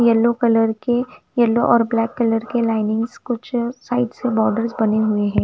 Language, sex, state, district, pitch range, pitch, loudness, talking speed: Hindi, female, Punjab, Fazilka, 225-240 Hz, 230 Hz, -19 LUFS, 175 wpm